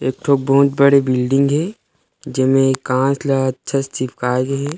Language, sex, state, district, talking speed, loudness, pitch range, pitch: Chhattisgarhi, male, Chhattisgarh, Rajnandgaon, 175 wpm, -17 LUFS, 130-140 Hz, 135 Hz